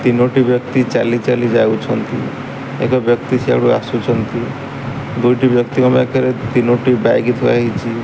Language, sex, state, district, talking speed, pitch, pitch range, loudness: Odia, male, Odisha, Sambalpur, 120 wpm, 125 Hz, 120-130 Hz, -15 LUFS